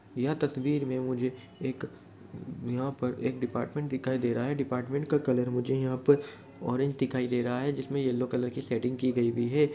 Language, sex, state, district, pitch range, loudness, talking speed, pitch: Hindi, male, Bihar, Lakhisarai, 125-140 Hz, -30 LUFS, 215 wpm, 130 Hz